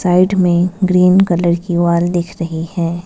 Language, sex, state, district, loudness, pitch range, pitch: Hindi, female, Arunachal Pradesh, Lower Dibang Valley, -14 LUFS, 170-180 Hz, 175 Hz